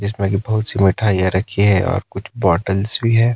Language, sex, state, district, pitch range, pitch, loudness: Hindi, male, Himachal Pradesh, Shimla, 95-110 Hz, 100 Hz, -17 LUFS